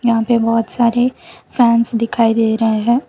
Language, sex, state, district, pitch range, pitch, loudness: Hindi, female, Gujarat, Valsad, 225-240 Hz, 230 Hz, -15 LUFS